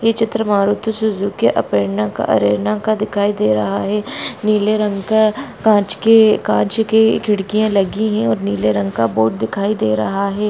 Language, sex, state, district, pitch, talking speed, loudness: Hindi, female, Maharashtra, Aurangabad, 205 Hz, 175 wpm, -16 LUFS